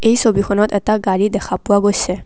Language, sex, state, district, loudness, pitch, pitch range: Assamese, female, Assam, Kamrup Metropolitan, -16 LUFS, 205 Hz, 195-215 Hz